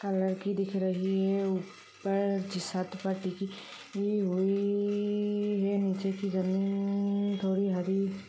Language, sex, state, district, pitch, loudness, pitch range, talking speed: Hindi, female, Rajasthan, Churu, 195 Hz, -31 LUFS, 190-200 Hz, 125 wpm